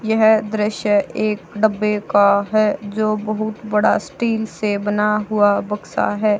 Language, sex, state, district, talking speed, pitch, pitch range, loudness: Hindi, female, Haryana, Charkhi Dadri, 140 wpm, 210 Hz, 205-215 Hz, -18 LUFS